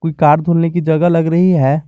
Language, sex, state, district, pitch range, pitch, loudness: Hindi, male, Jharkhand, Garhwa, 155-170 Hz, 165 Hz, -13 LUFS